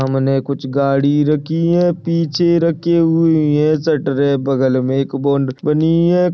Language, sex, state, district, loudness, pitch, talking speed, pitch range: Hindi, male, Goa, North and South Goa, -15 LUFS, 150 Hz, 150 wpm, 135-165 Hz